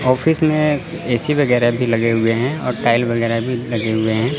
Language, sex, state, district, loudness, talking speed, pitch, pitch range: Hindi, male, Chandigarh, Chandigarh, -17 LUFS, 205 wpm, 120 Hz, 115-145 Hz